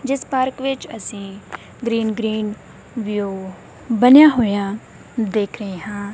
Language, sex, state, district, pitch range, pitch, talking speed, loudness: Punjabi, female, Punjab, Kapurthala, 205-250 Hz, 215 Hz, 115 wpm, -19 LUFS